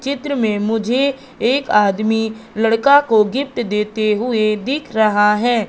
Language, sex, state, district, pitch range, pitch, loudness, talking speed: Hindi, female, Madhya Pradesh, Katni, 215-265 Hz, 225 Hz, -16 LUFS, 135 wpm